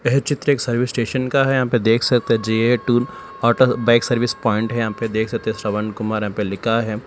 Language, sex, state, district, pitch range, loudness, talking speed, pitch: Hindi, male, Telangana, Hyderabad, 110-125 Hz, -19 LUFS, 255 wpm, 120 Hz